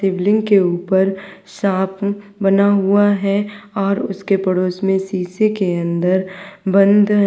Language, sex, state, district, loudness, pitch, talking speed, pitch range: Hindi, female, Uttar Pradesh, Lalitpur, -17 LUFS, 195 Hz, 130 wpm, 190-205 Hz